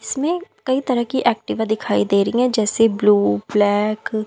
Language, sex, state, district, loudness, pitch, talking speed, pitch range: Hindi, female, Haryana, Jhajjar, -18 LUFS, 220 Hz, 180 wpm, 205-250 Hz